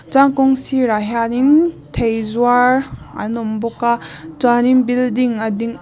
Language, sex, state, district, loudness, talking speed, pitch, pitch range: Mizo, female, Mizoram, Aizawl, -16 LUFS, 145 wpm, 240 Hz, 225-255 Hz